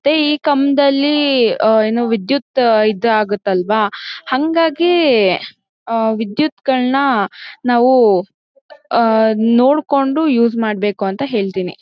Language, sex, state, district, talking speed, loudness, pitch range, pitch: Kannada, female, Karnataka, Mysore, 90 wpm, -15 LUFS, 220-280 Hz, 240 Hz